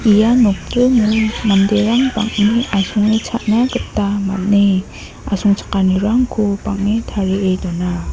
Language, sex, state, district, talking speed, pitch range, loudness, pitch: Garo, female, Meghalaya, North Garo Hills, 90 wpm, 195-225 Hz, -15 LUFS, 210 Hz